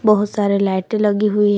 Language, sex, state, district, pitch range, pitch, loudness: Hindi, female, Jharkhand, Palamu, 200-210 Hz, 205 Hz, -17 LUFS